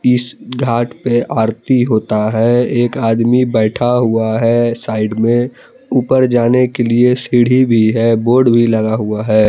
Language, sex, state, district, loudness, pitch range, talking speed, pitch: Hindi, male, Jharkhand, Palamu, -13 LUFS, 110-125 Hz, 160 wpm, 120 Hz